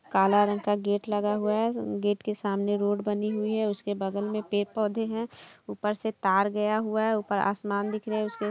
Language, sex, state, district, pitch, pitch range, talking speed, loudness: Hindi, female, Jharkhand, Jamtara, 210 Hz, 205-215 Hz, 205 wpm, -28 LUFS